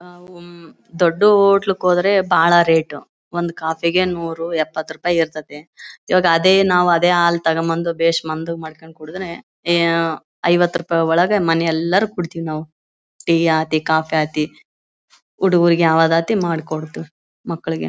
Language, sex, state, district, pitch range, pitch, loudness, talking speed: Kannada, female, Karnataka, Bellary, 160-175 Hz, 165 Hz, -17 LUFS, 125 wpm